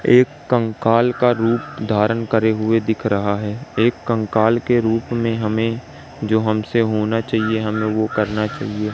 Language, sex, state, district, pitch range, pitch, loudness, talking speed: Hindi, male, Madhya Pradesh, Katni, 110-115 Hz, 110 Hz, -19 LUFS, 160 wpm